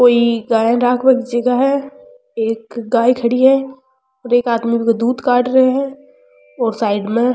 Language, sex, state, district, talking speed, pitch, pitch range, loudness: Rajasthani, female, Rajasthan, Churu, 180 wpm, 245 Hz, 230-260 Hz, -15 LUFS